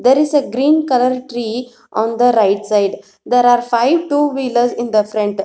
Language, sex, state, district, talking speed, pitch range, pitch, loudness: English, female, Telangana, Hyderabad, 200 wpm, 220-260 Hz, 245 Hz, -15 LUFS